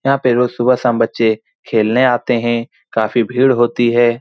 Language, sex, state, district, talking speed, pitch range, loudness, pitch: Hindi, male, Bihar, Saran, 185 wpm, 115-125 Hz, -15 LUFS, 120 Hz